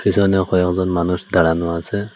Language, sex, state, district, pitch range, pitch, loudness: Bengali, male, Assam, Hailakandi, 85-100 Hz, 90 Hz, -18 LUFS